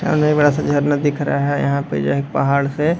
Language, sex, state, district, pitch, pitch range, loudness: Hindi, male, Bihar, Madhepura, 145 Hz, 140-145 Hz, -17 LUFS